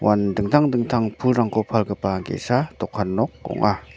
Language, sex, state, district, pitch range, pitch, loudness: Garo, male, Meghalaya, North Garo Hills, 105-120 Hz, 110 Hz, -22 LUFS